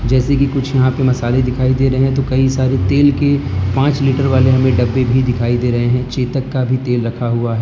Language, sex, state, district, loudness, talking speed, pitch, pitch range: Hindi, male, Gujarat, Valsad, -15 LUFS, 250 wpm, 130 Hz, 120-135 Hz